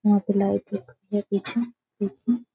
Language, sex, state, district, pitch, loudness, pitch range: Hindi, female, Bihar, Sitamarhi, 205 Hz, -26 LUFS, 200-235 Hz